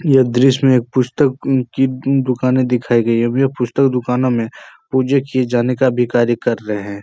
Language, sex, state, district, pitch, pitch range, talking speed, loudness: Hindi, male, Uttar Pradesh, Etah, 125 Hz, 120-130 Hz, 215 wpm, -16 LUFS